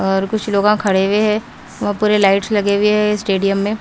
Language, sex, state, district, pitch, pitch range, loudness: Hindi, female, Bihar, Katihar, 205 Hz, 195-210 Hz, -16 LUFS